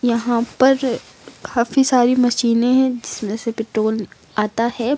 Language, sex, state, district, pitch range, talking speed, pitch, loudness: Hindi, female, Uttar Pradesh, Lucknow, 230-250 Hz, 135 wpm, 235 Hz, -18 LUFS